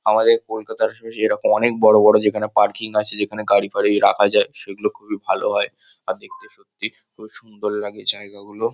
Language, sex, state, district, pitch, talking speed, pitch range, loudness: Bengali, male, West Bengal, Kolkata, 110 Hz, 180 wpm, 105-115 Hz, -19 LUFS